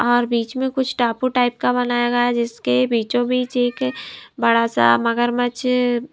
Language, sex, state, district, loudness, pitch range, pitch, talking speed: Hindi, female, Himachal Pradesh, Shimla, -19 LUFS, 230-245 Hz, 240 Hz, 155 wpm